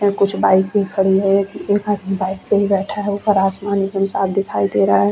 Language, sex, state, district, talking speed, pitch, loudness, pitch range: Hindi, female, Chhattisgarh, Bastar, 295 wpm, 195 Hz, -17 LUFS, 190-205 Hz